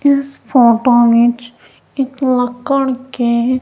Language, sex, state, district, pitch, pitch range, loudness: Hindi, female, Punjab, Kapurthala, 250 Hz, 240-270 Hz, -14 LUFS